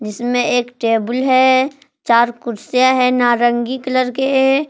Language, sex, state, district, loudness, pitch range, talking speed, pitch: Hindi, female, Jharkhand, Palamu, -15 LUFS, 240-260 Hz, 130 wpm, 250 Hz